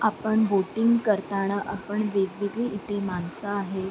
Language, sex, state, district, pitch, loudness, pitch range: Marathi, female, Maharashtra, Sindhudurg, 205 Hz, -26 LUFS, 195-215 Hz